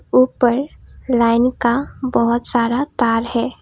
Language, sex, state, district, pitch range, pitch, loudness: Hindi, female, Assam, Kamrup Metropolitan, 230-255 Hz, 240 Hz, -17 LUFS